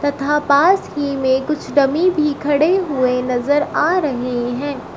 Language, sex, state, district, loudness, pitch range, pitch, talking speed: Hindi, female, Uttar Pradesh, Shamli, -17 LUFS, 265-300 Hz, 285 Hz, 155 wpm